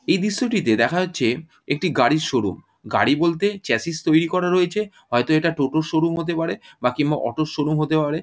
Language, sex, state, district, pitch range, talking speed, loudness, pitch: Bengali, male, West Bengal, Jhargram, 155-180 Hz, 210 wpm, -21 LUFS, 165 Hz